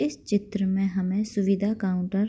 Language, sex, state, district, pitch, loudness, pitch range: Hindi, female, Bihar, Begusarai, 195 Hz, -26 LUFS, 190-205 Hz